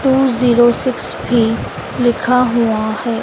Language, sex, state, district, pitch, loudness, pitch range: Hindi, female, Madhya Pradesh, Dhar, 240 Hz, -15 LUFS, 230-250 Hz